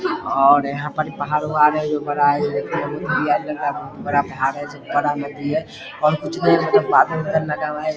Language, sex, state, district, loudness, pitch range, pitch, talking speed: Hindi, male, Bihar, Vaishali, -19 LUFS, 145-155 Hz, 150 Hz, 100 wpm